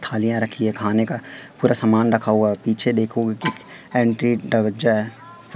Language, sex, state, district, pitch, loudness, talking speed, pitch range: Hindi, female, Madhya Pradesh, Katni, 115 Hz, -19 LUFS, 150 wpm, 110-115 Hz